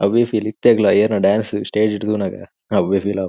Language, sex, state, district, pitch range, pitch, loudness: Tulu, male, Karnataka, Dakshina Kannada, 100-110 Hz, 105 Hz, -17 LUFS